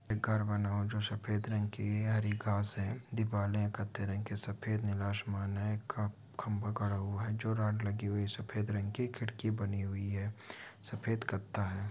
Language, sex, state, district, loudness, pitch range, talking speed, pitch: Hindi, male, Bihar, Araria, -36 LUFS, 100-110 Hz, 195 wpm, 105 Hz